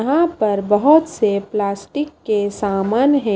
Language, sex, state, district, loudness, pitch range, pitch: Hindi, female, Maharashtra, Washim, -17 LUFS, 205-285 Hz, 215 Hz